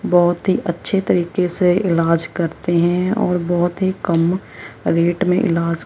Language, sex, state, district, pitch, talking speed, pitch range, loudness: Hindi, male, Punjab, Kapurthala, 175 Hz, 155 wpm, 170-180 Hz, -18 LUFS